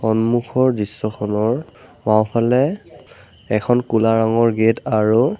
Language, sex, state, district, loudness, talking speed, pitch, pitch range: Assamese, male, Assam, Sonitpur, -18 LUFS, 90 wpm, 115 Hz, 110-120 Hz